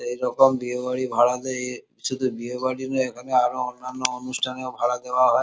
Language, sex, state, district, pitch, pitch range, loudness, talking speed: Bengali, male, West Bengal, Kolkata, 130 Hz, 125-130 Hz, -24 LUFS, 165 wpm